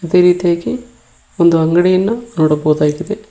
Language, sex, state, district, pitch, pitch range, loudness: Kannada, male, Karnataka, Koppal, 175 Hz, 160-205 Hz, -14 LUFS